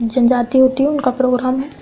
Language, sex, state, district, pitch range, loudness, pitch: Hindi, female, Uttar Pradesh, Budaun, 250-265 Hz, -15 LUFS, 255 Hz